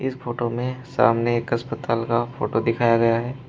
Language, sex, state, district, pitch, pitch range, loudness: Hindi, male, Uttar Pradesh, Shamli, 120 Hz, 115-125 Hz, -22 LUFS